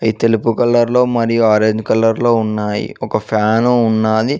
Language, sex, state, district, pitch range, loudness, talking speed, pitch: Telugu, male, Telangana, Mahabubabad, 110-120 Hz, -14 LUFS, 150 wpm, 115 Hz